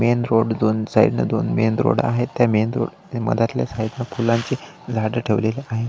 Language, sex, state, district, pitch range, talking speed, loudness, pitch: Marathi, male, Maharashtra, Solapur, 110-120 Hz, 205 wpm, -20 LUFS, 115 Hz